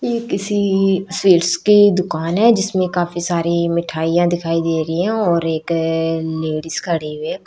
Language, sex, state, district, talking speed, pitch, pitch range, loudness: Hindi, female, Chhattisgarh, Raipur, 160 wpm, 170 Hz, 165-195 Hz, -17 LUFS